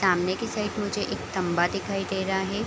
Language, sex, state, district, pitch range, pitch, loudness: Hindi, female, Bihar, Kishanganj, 185-205 Hz, 195 Hz, -27 LUFS